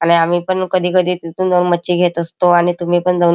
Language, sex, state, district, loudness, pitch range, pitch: Marathi, male, Maharashtra, Chandrapur, -15 LUFS, 175-180 Hz, 175 Hz